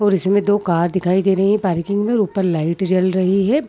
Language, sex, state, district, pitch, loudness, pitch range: Hindi, female, Chhattisgarh, Bilaspur, 190 Hz, -17 LUFS, 185-205 Hz